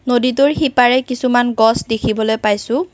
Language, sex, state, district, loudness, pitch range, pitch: Assamese, female, Assam, Kamrup Metropolitan, -15 LUFS, 225-255 Hz, 245 Hz